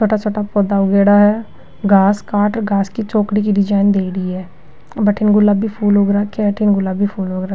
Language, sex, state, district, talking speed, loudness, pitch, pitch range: Rajasthani, female, Rajasthan, Nagaur, 165 wpm, -15 LUFS, 205 Hz, 195-210 Hz